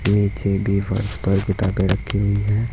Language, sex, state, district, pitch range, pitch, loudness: Hindi, male, Uttar Pradesh, Saharanpur, 95-105 Hz, 100 Hz, -20 LUFS